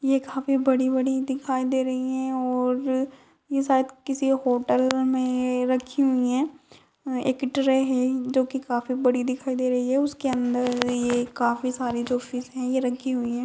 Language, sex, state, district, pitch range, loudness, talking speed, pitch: Hindi, female, Rajasthan, Churu, 250-265 Hz, -25 LUFS, 165 wpm, 260 Hz